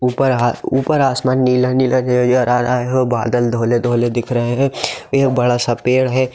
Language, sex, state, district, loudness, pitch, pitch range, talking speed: Hindi, male, Bihar, Saran, -16 LUFS, 125 Hz, 120-130 Hz, 200 wpm